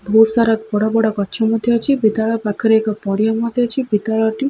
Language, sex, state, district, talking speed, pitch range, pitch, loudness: Odia, female, Odisha, Khordha, 225 wpm, 215-230 Hz, 220 Hz, -17 LUFS